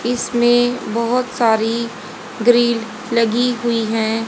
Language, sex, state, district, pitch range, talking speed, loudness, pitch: Hindi, female, Haryana, Jhajjar, 225-245 Hz, 100 wpm, -17 LUFS, 235 Hz